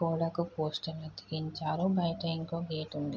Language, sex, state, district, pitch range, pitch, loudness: Telugu, female, Andhra Pradesh, Guntur, 155-170 Hz, 160 Hz, -34 LUFS